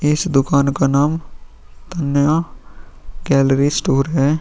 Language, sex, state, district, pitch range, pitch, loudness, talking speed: Hindi, male, Bihar, Vaishali, 135-150 Hz, 140 Hz, -17 LUFS, 110 wpm